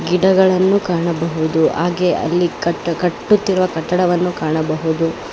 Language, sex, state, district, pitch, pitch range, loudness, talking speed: Kannada, female, Karnataka, Bangalore, 175 Hz, 165-180 Hz, -16 LUFS, 90 wpm